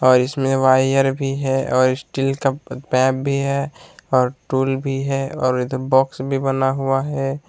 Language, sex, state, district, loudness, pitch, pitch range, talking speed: Hindi, male, Jharkhand, Palamu, -19 LUFS, 135 Hz, 130-135 Hz, 175 wpm